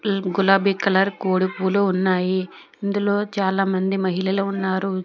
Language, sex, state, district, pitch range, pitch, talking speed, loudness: Telugu, female, Telangana, Hyderabad, 185-195 Hz, 190 Hz, 120 wpm, -21 LUFS